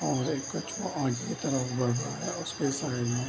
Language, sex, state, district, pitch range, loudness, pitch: Hindi, male, Bihar, Bhagalpur, 125-170 Hz, -31 LUFS, 140 Hz